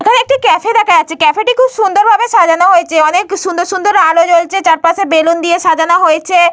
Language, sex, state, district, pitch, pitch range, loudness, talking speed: Bengali, female, West Bengal, Dakshin Dinajpur, 360 Hz, 335-415 Hz, -10 LUFS, 200 wpm